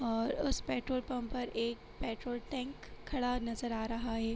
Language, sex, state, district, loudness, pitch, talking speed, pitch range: Hindi, female, Jharkhand, Jamtara, -37 LUFS, 240 Hz, 180 wpm, 230-255 Hz